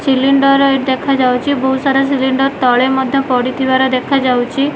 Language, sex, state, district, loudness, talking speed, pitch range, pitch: Odia, female, Odisha, Malkangiri, -13 LUFS, 115 wpm, 260-275 Hz, 265 Hz